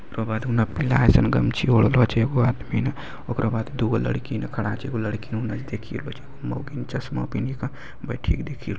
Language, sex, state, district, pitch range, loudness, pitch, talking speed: Maithili, male, Bihar, Bhagalpur, 110-125 Hz, -24 LUFS, 115 Hz, 165 wpm